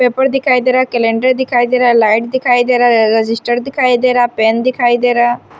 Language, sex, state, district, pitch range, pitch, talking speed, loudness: Hindi, female, Himachal Pradesh, Shimla, 235-255 Hz, 245 Hz, 270 wpm, -12 LUFS